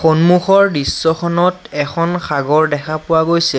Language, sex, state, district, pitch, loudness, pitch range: Assamese, male, Assam, Sonitpur, 165 Hz, -14 LUFS, 150-175 Hz